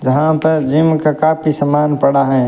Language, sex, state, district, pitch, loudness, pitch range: Hindi, male, Rajasthan, Bikaner, 150 Hz, -14 LUFS, 140-155 Hz